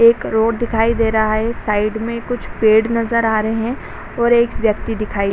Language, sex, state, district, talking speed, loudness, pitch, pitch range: Hindi, female, Bihar, Sitamarhi, 225 wpm, -17 LUFS, 225 Hz, 215-230 Hz